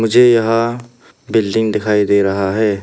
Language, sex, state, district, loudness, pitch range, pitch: Hindi, male, Arunachal Pradesh, Papum Pare, -14 LUFS, 105-120 Hz, 110 Hz